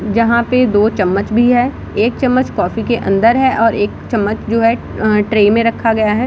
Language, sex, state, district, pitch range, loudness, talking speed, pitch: Hindi, female, Bihar, Samastipur, 210-235 Hz, -14 LUFS, 210 wpm, 225 Hz